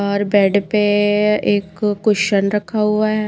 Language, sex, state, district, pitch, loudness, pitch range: Hindi, female, Himachal Pradesh, Shimla, 205 Hz, -16 LUFS, 200-210 Hz